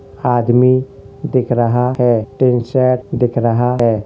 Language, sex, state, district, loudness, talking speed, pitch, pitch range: Hindi, male, Uttar Pradesh, Hamirpur, -15 LUFS, 135 wpm, 125 Hz, 120-130 Hz